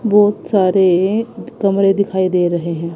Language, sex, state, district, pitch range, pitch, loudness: Hindi, female, Punjab, Kapurthala, 180-205 Hz, 195 Hz, -15 LUFS